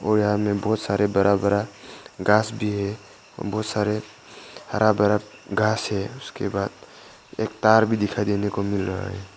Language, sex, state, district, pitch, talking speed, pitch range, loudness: Hindi, male, Arunachal Pradesh, Papum Pare, 105 Hz, 180 wpm, 100-110 Hz, -23 LUFS